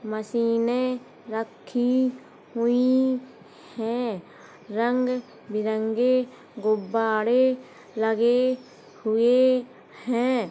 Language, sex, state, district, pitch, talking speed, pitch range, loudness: Hindi, female, Uttar Pradesh, Hamirpur, 240 Hz, 55 wpm, 220-255 Hz, -24 LUFS